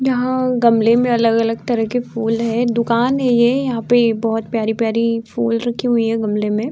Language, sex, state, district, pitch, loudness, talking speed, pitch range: Hindi, female, Uttar Pradesh, Muzaffarnagar, 235 Hz, -17 LUFS, 185 wpm, 225-245 Hz